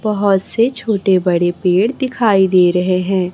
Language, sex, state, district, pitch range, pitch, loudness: Hindi, female, Chhattisgarh, Raipur, 180-215 Hz, 190 Hz, -15 LUFS